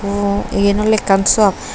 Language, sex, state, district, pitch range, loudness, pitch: Chakma, female, Tripura, Dhalai, 200-210 Hz, -14 LUFS, 200 Hz